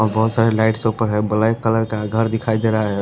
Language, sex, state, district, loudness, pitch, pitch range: Hindi, male, Punjab, Pathankot, -18 LUFS, 110 Hz, 110-115 Hz